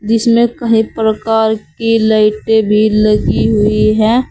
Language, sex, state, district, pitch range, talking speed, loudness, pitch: Hindi, female, Uttar Pradesh, Saharanpur, 215-225 Hz, 125 wpm, -12 LUFS, 220 Hz